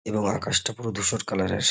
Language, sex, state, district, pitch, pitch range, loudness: Bengali, male, West Bengal, North 24 Parganas, 105 Hz, 100-115 Hz, -25 LUFS